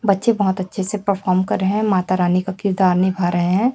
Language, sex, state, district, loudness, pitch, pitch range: Hindi, female, Chhattisgarh, Raipur, -18 LUFS, 190 Hz, 185-200 Hz